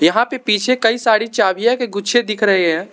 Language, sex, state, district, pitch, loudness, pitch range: Hindi, male, Arunachal Pradesh, Lower Dibang Valley, 220 Hz, -16 LUFS, 200-240 Hz